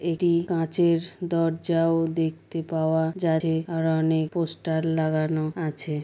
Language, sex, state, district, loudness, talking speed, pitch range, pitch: Bengali, female, West Bengal, Dakshin Dinajpur, -25 LUFS, 120 wpm, 160-170 Hz, 165 Hz